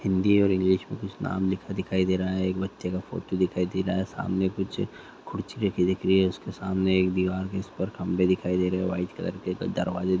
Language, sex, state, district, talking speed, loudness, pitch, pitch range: Hindi, female, Andhra Pradesh, Anantapur, 260 wpm, -27 LUFS, 95 Hz, 90-95 Hz